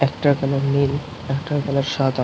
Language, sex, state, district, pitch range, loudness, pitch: Bengali, male, West Bengal, North 24 Parganas, 135-140 Hz, -21 LUFS, 140 Hz